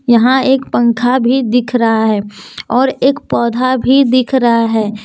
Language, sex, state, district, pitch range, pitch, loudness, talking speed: Hindi, female, Jharkhand, Deoghar, 230-260 Hz, 245 Hz, -12 LUFS, 165 wpm